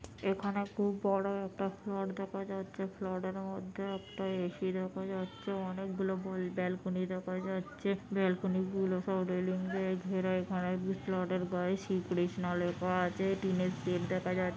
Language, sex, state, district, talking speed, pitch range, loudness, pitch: Bengali, female, West Bengal, Jhargram, 150 wpm, 185-195 Hz, -36 LUFS, 190 Hz